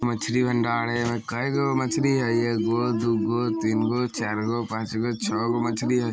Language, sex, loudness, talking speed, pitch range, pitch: Bhojpuri, male, -25 LUFS, 175 wpm, 115-120 Hz, 120 Hz